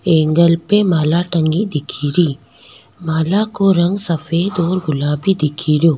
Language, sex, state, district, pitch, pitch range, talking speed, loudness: Rajasthani, female, Rajasthan, Nagaur, 165 Hz, 155-185 Hz, 120 wpm, -16 LUFS